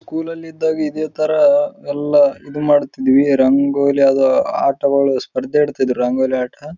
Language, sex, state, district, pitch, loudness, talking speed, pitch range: Kannada, male, Karnataka, Raichur, 145 Hz, -16 LUFS, 140 wpm, 135-160 Hz